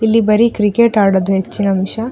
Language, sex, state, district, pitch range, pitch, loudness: Kannada, female, Karnataka, Dakshina Kannada, 195-225 Hz, 210 Hz, -13 LUFS